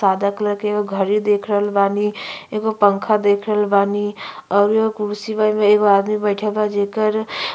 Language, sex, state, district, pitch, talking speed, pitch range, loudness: Bhojpuri, female, Uttar Pradesh, Ghazipur, 210 Hz, 190 wpm, 200-215 Hz, -18 LUFS